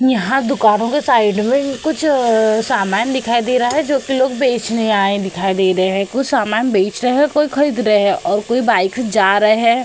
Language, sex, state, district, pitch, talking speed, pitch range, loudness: Hindi, female, Uttar Pradesh, Hamirpur, 235 Hz, 220 wpm, 210-265 Hz, -15 LUFS